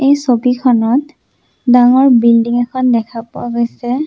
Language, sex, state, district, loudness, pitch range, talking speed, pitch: Assamese, female, Assam, Sonitpur, -12 LUFS, 235-260 Hz, 120 wpm, 245 Hz